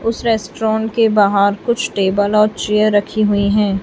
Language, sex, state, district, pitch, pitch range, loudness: Hindi, female, Chhattisgarh, Raipur, 210 Hz, 200-220 Hz, -15 LUFS